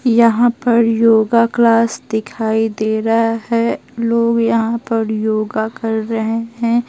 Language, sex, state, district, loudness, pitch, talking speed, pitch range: Hindi, female, Bihar, Patna, -16 LUFS, 230 Hz, 130 wpm, 220-230 Hz